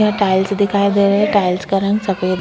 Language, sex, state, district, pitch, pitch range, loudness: Hindi, female, Chhattisgarh, Sukma, 200 Hz, 190-205 Hz, -16 LUFS